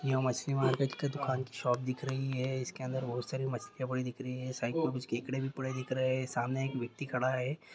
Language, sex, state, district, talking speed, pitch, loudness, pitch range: Hindi, male, Bihar, Jahanabad, 265 wpm, 130 Hz, -35 LUFS, 125-135 Hz